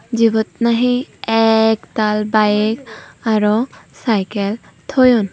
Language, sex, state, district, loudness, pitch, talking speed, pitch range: Chakma, female, Tripura, Unakoti, -16 LUFS, 220 Hz, 80 wpm, 210-230 Hz